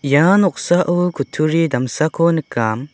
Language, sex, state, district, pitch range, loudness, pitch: Garo, male, Meghalaya, South Garo Hills, 135-175 Hz, -16 LUFS, 155 Hz